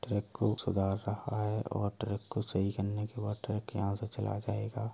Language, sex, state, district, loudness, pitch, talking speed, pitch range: Hindi, male, Uttar Pradesh, Hamirpur, -35 LUFS, 105 Hz, 195 wpm, 100-110 Hz